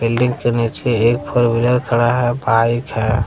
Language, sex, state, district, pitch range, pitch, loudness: Hindi, male, Bihar, Jamui, 115-125 Hz, 120 Hz, -16 LUFS